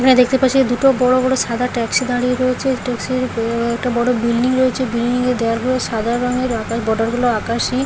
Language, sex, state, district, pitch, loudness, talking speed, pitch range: Bengali, female, West Bengal, Paschim Medinipur, 250 Hz, -17 LUFS, 220 wpm, 235-255 Hz